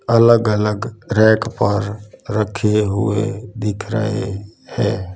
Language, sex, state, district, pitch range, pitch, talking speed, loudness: Hindi, male, Gujarat, Gandhinagar, 105-110 Hz, 105 Hz, 105 wpm, -18 LUFS